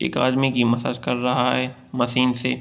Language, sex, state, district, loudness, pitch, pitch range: Hindi, male, Bihar, Gopalganj, -21 LUFS, 125 Hz, 125-130 Hz